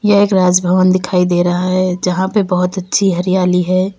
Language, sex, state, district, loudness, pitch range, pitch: Hindi, female, Uttar Pradesh, Lalitpur, -14 LUFS, 180-190 Hz, 185 Hz